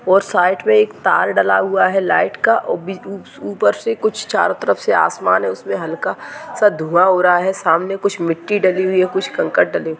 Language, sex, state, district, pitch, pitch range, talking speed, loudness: Hindi, female, Uttarakhand, Tehri Garhwal, 185 Hz, 165-195 Hz, 215 wpm, -16 LUFS